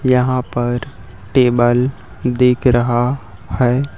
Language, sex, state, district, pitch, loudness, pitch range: Hindi, male, Chhattisgarh, Raipur, 125 Hz, -16 LUFS, 120-125 Hz